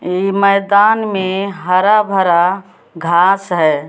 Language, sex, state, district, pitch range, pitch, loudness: Hindi, female, Bihar, West Champaran, 175-200 Hz, 190 Hz, -13 LUFS